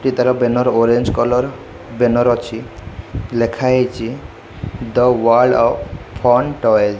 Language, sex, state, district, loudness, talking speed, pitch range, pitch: Odia, male, Odisha, Khordha, -15 LUFS, 130 wpm, 110-125 Hz, 115 Hz